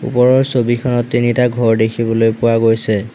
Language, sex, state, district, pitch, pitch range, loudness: Assamese, male, Assam, Hailakandi, 120 Hz, 115-125 Hz, -14 LUFS